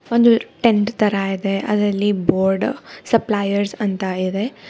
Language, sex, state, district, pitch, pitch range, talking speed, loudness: Kannada, female, Karnataka, Bangalore, 205 Hz, 195-215 Hz, 115 wpm, -19 LUFS